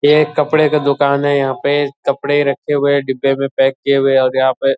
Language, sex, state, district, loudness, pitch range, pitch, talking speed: Hindi, male, Bihar, Purnia, -14 LUFS, 135-145 Hz, 140 Hz, 265 wpm